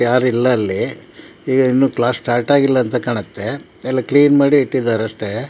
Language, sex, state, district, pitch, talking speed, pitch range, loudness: Kannada, male, Karnataka, Dakshina Kannada, 125 Hz, 130 wpm, 120-135 Hz, -16 LUFS